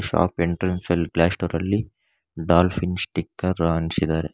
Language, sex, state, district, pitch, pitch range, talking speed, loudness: Kannada, male, Karnataka, Bangalore, 85 Hz, 85-90 Hz, 110 wpm, -23 LUFS